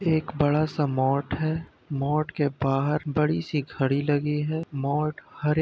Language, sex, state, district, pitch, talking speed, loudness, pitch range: Hindi, male, Uttar Pradesh, Muzaffarnagar, 150 Hz, 170 wpm, -26 LUFS, 140-155 Hz